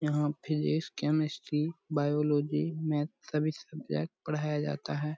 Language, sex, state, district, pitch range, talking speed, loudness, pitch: Hindi, male, Bihar, Purnia, 150-155 Hz, 115 wpm, -32 LUFS, 150 Hz